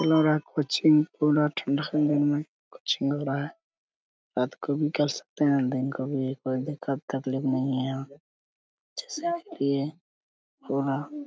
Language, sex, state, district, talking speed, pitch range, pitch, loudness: Hindi, male, Jharkhand, Sahebganj, 95 wpm, 135-150 Hz, 145 Hz, -27 LUFS